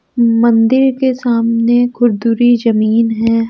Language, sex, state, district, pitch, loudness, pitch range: Hindi, female, Bihar, West Champaran, 235 Hz, -12 LUFS, 230-240 Hz